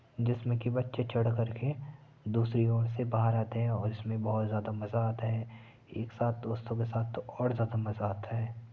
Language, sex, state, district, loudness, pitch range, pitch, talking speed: Hindi, male, Uttar Pradesh, Etah, -33 LUFS, 110-120 Hz, 115 Hz, 205 wpm